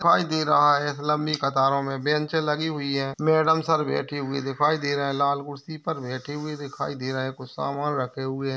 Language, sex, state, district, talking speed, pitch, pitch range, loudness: Hindi, male, Maharashtra, Solapur, 240 wpm, 145 Hz, 135-150 Hz, -25 LUFS